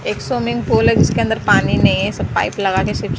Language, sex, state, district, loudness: Hindi, female, Maharashtra, Mumbai Suburban, -16 LUFS